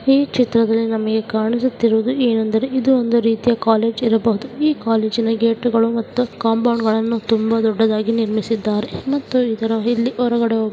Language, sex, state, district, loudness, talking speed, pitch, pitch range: Kannada, female, Karnataka, Dharwad, -18 LUFS, 140 wpm, 230 Hz, 225-240 Hz